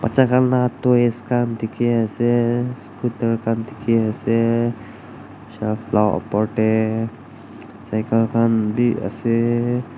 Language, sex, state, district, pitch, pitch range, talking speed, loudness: Nagamese, male, Nagaland, Dimapur, 115 Hz, 110-120 Hz, 115 wpm, -20 LUFS